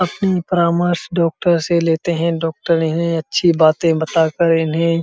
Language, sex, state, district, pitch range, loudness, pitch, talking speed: Hindi, male, Uttar Pradesh, Muzaffarnagar, 165-170 Hz, -16 LUFS, 170 Hz, 165 wpm